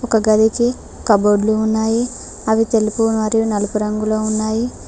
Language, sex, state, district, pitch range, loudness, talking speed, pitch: Telugu, female, Telangana, Mahabubabad, 215-225 Hz, -17 LUFS, 135 wpm, 220 Hz